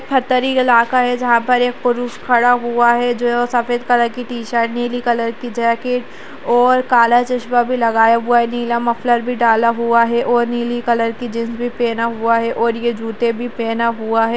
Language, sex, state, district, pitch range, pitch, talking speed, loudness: Hindi, female, Uttarakhand, Tehri Garhwal, 235-245 Hz, 240 Hz, 215 wpm, -16 LUFS